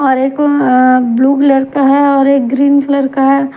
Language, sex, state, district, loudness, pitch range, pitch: Hindi, female, Haryana, Jhajjar, -10 LUFS, 265-280 Hz, 275 Hz